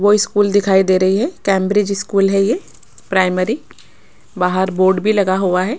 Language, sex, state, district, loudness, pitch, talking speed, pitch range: Hindi, female, Rajasthan, Jaipur, -16 LUFS, 195 Hz, 175 wpm, 185-205 Hz